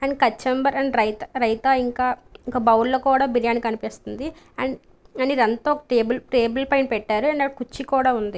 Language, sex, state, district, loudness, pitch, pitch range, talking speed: Telugu, female, Andhra Pradesh, Visakhapatnam, -22 LUFS, 255 Hz, 235-270 Hz, 170 wpm